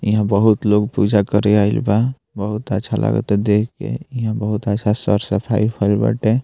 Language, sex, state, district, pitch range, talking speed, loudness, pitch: Bhojpuri, male, Bihar, Muzaffarpur, 105-115 Hz, 170 wpm, -18 LUFS, 105 Hz